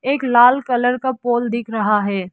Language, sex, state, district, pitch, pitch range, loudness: Hindi, female, Arunachal Pradesh, Lower Dibang Valley, 240 Hz, 215-250 Hz, -17 LUFS